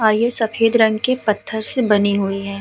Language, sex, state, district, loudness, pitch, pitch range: Hindi, female, Uttar Pradesh, Hamirpur, -17 LUFS, 220 Hz, 205-225 Hz